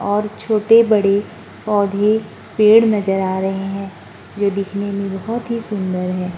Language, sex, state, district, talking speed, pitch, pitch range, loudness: Hindi, female, Uttar Pradesh, Muzaffarnagar, 140 wpm, 200 Hz, 195-215 Hz, -17 LUFS